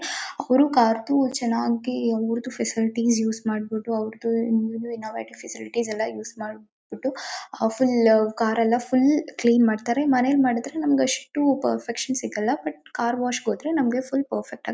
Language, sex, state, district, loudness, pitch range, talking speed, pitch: Kannada, female, Karnataka, Mysore, -23 LUFS, 225-260 Hz, 140 wpm, 235 Hz